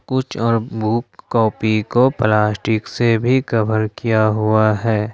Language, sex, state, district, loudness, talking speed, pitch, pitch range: Hindi, male, Jharkhand, Ranchi, -17 LUFS, 140 wpm, 110 Hz, 110-120 Hz